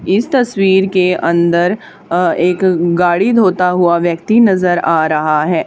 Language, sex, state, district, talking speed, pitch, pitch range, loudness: Hindi, female, Haryana, Charkhi Dadri, 150 wpm, 180 Hz, 170-190 Hz, -12 LUFS